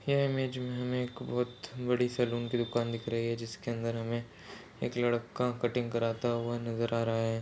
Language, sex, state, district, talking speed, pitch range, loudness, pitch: Hindi, male, Goa, North and South Goa, 195 wpm, 115-125 Hz, -33 LUFS, 120 Hz